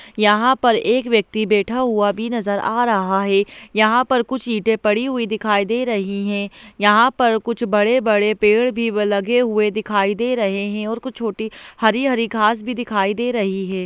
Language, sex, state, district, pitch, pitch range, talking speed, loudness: Hindi, female, Bihar, Jahanabad, 220 Hz, 205-240 Hz, 190 wpm, -18 LUFS